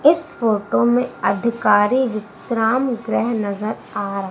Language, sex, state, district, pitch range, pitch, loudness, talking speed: Hindi, female, Madhya Pradesh, Umaria, 205-250 Hz, 225 Hz, -19 LUFS, 110 wpm